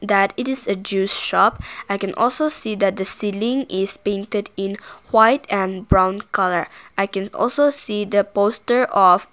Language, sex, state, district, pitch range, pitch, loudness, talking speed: English, female, Nagaland, Kohima, 195-225 Hz, 200 Hz, -18 LUFS, 175 wpm